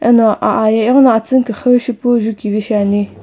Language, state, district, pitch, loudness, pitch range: Sumi, Nagaland, Kohima, 225 Hz, -13 LUFS, 215-245 Hz